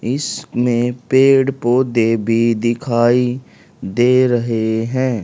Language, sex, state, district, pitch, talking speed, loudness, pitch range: Hindi, male, Haryana, Charkhi Dadri, 120 Hz, 90 wpm, -16 LUFS, 115-130 Hz